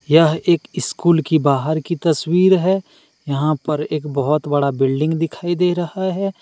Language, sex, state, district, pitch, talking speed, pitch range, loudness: Hindi, male, Jharkhand, Deoghar, 160 Hz, 170 wpm, 150-175 Hz, -18 LUFS